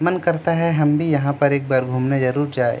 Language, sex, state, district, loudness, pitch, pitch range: Hindi, male, Jharkhand, Jamtara, -19 LUFS, 145 Hz, 130-165 Hz